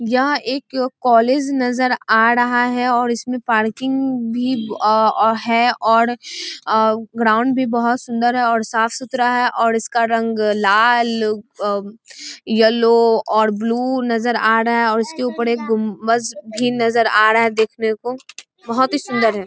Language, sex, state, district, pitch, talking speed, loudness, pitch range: Hindi, female, Bihar, East Champaran, 230 Hz, 155 wpm, -17 LUFS, 225-245 Hz